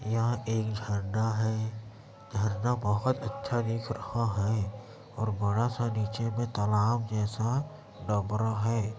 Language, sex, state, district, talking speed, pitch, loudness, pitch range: Hindi, male, Chhattisgarh, Kabirdham, 125 wpm, 110 Hz, -30 LUFS, 105-115 Hz